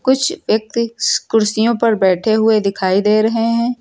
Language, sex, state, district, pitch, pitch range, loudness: Hindi, female, Uttar Pradesh, Lucknow, 220 Hz, 215-235 Hz, -15 LUFS